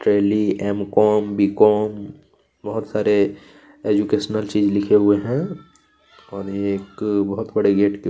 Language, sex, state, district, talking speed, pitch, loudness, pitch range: Hindi, male, Chhattisgarh, Kabirdham, 140 wpm, 105 Hz, -19 LUFS, 100-105 Hz